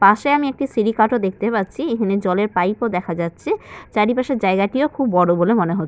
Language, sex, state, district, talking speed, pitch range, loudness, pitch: Bengali, female, West Bengal, Malda, 215 wpm, 185-250 Hz, -19 LUFS, 210 Hz